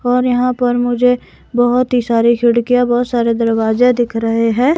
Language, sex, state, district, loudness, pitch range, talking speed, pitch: Hindi, female, Himachal Pradesh, Shimla, -14 LUFS, 235-250 Hz, 175 wpm, 245 Hz